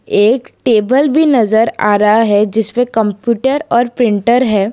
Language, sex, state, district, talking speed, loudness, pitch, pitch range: Hindi, female, Gujarat, Valsad, 150 wpm, -12 LUFS, 230 Hz, 215-250 Hz